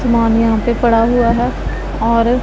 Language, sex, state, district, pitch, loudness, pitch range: Hindi, female, Punjab, Pathankot, 235 Hz, -14 LUFS, 230-240 Hz